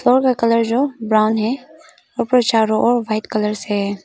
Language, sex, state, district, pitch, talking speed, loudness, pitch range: Hindi, female, Arunachal Pradesh, Papum Pare, 225 Hz, 160 wpm, -17 LUFS, 215-245 Hz